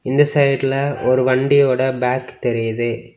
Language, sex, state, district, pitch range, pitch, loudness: Tamil, male, Tamil Nadu, Kanyakumari, 125-135 Hz, 130 Hz, -17 LUFS